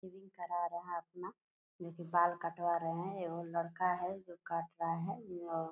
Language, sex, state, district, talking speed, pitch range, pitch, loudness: Hindi, female, Bihar, Purnia, 200 wpm, 170-180 Hz, 175 Hz, -39 LUFS